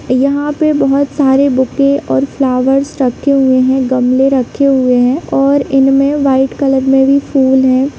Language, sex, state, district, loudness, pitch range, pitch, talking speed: Hindi, female, Jharkhand, Jamtara, -11 LUFS, 260-280 Hz, 270 Hz, 165 wpm